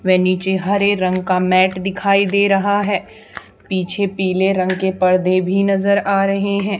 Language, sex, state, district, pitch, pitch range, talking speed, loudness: Hindi, female, Haryana, Charkhi Dadri, 195 Hz, 185-200 Hz, 175 wpm, -16 LUFS